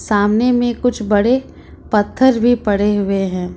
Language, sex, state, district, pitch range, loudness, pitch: Hindi, female, Uttar Pradesh, Lucknow, 205-245 Hz, -15 LUFS, 210 Hz